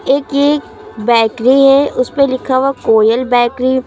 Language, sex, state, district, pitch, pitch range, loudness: Hindi, female, Uttar Pradesh, Lucknow, 260 Hz, 240-275 Hz, -12 LUFS